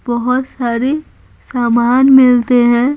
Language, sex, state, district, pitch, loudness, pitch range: Hindi, female, Bihar, Patna, 250 Hz, -12 LUFS, 240-260 Hz